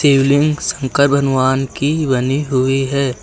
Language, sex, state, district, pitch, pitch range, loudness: Hindi, male, Uttar Pradesh, Lucknow, 135 Hz, 130-140 Hz, -15 LUFS